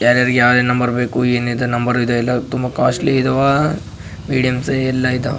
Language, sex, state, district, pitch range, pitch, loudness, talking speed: Kannada, male, Karnataka, Raichur, 120-130 Hz, 125 Hz, -16 LUFS, 155 wpm